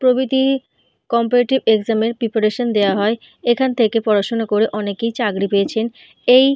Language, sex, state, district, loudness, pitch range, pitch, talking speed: Bengali, female, West Bengal, North 24 Parganas, -17 LUFS, 215-245 Hz, 230 Hz, 135 wpm